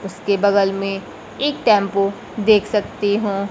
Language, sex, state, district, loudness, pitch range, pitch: Hindi, female, Bihar, Kaimur, -18 LUFS, 195-210 Hz, 200 Hz